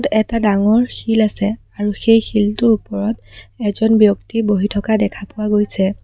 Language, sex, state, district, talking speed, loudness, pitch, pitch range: Assamese, female, Assam, Sonitpur, 150 wpm, -16 LUFS, 210 Hz, 205-225 Hz